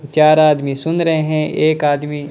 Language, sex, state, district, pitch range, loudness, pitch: Hindi, male, Rajasthan, Bikaner, 145-155 Hz, -15 LUFS, 155 Hz